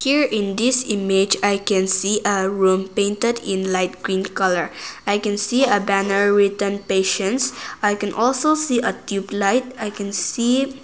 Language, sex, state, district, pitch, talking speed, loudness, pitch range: English, female, Nagaland, Kohima, 205 Hz, 170 wpm, -20 LUFS, 195-235 Hz